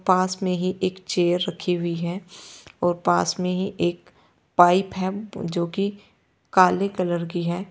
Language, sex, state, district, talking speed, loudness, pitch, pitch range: Hindi, female, Uttar Pradesh, Lalitpur, 165 wpm, -23 LUFS, 180 Hz, 175-190 Hz